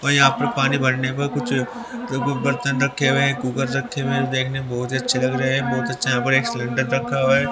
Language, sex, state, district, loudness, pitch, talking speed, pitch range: Hindi, male, Haryana, Rohtak, -21 LUFS, 135 Hz, 255 wpm, 125-140 Hz